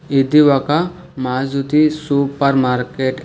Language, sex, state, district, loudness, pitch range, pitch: Telugu, male, Telangana, Hyderabad, -16 LUFS, 135-150 Hz, 140 Hz